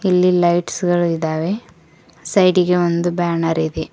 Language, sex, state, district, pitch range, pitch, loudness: Kannada, female, Karnataka, Koppal, 165-180 Hz, 175 Hz, -17 LUFS